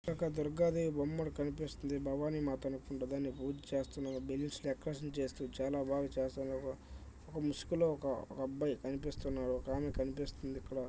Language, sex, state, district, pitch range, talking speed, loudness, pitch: Telugu, male, Karnataka, Dharwad, 130-145 Hz, 120 wpm, -39 LUFS, 140 Hz